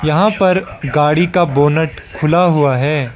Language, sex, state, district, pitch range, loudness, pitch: Hindi, male, Arunachal Pradesh, Lower Dibang Valley, 145-175 Hz, -14 LUFS, 155 Hz